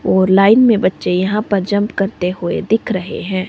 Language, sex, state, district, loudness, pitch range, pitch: Hindi, female, Himachal Pradesh, Shimla, -15 LUFS, 185-210 Hz, 195 Hz